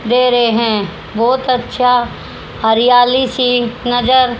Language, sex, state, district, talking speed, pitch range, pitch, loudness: Hindi, female, Haryana, Rohtak, 110 wpm, 235-250 Hz, 245 Hz, -13 LUFS